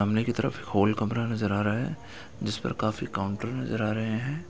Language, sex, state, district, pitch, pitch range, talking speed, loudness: Hindi, male, Uttar Pradesh, Etah, 110 Hz, 105-115 Hz, 225 wpm, -29 LUFS